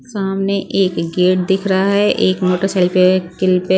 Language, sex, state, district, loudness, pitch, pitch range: Hindi, female, Punjab, Pathankot, -15 LUFS, 190 Hz, 185-195 Hz